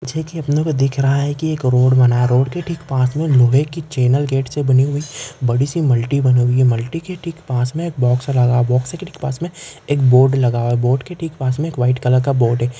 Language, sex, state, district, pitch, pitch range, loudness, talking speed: Hindi, male, Maharashtra, Chandrapur, 135 Hz, 125-155 Hz, -16 LUFS, 265 wpm